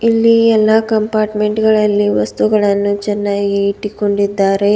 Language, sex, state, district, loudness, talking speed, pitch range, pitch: Kannada, female, Karnataka, Bidar, -14 LUFS, 90 wpm, 200-215 Hz, 210 Hz